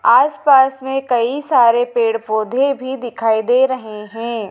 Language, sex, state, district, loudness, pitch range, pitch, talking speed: Hindi, female, Madhya Pradesh, Dhar, -16 LUFS, 225-265 Hz, 245 Hz, 160 wpm